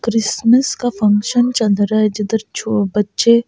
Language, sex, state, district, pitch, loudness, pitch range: Hindi, female, Delhi, New Delhi, 220 Hz, -16 LUFS, 210-235 Hz